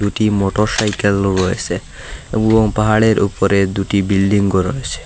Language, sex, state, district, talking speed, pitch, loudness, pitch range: Bengali, male, Assam, Hailakandi, 105 wpm, 100 Hz, -16 LUFS, 95-105 Hz